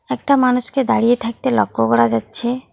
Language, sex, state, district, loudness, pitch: Bengali, female, West Bengal, Alipurduar, -17 LUFS, 240 Hz